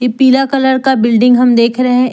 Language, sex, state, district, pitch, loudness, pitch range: Hindi, female, Jharkhand, Deoghar, 250 Hz, -10 LUFS, 245-265 Hz